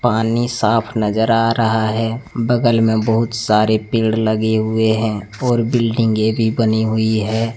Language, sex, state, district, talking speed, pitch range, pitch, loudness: Hindi, male, Jharkhand, Deoghar, 160 wpm, 110-115 Hz, 110 Hz, -16 LUFS